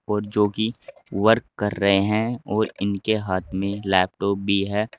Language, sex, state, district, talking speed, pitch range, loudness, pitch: Hindi, male, Uttar Pradesh, Saharanpur, 170 wpm, 100-110 Hz, -23 LUFS, 105 Hz